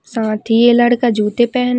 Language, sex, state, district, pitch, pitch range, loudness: Hindi, female, Maharashtra, Solapur, 240 Hz, 225-240 Hz, -14 LUFS